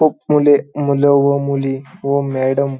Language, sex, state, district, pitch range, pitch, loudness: Marathi, male, Maharashtra, Pune, 140-145 Hz, 140 Hz, -15 LUFS